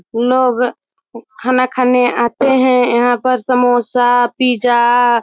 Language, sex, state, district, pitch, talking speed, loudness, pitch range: Hindi, female, Bihar, Muzaffarpur, 245 Hz, 115 wpm, -13 LUFS, 240-255 Hz